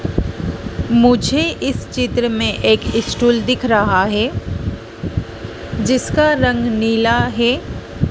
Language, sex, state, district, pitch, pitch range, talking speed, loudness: Hindi, female, Madhya Pradesh, Dhar, 235 Hz, 220-245 Hz, 95 wpm, -16 LUFS